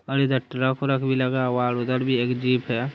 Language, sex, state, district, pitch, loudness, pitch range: Hindi, male, Bihar, Saharsa, 130 Hz, -23 LUFS, 125-130 Hz